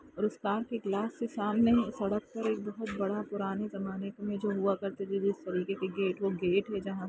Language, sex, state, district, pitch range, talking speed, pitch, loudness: Hindi, female, Bihar, Saran, 195-210 Hz, 270 wpm, 200 Hz, -33 LUFS